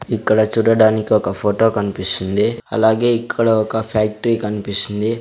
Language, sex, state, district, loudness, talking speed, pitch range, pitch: Telugu, male, Andhra Pradesh, Sri Satya Sai, -17 LUFS, 115 wpm, 105-115 Hz, 110 Hz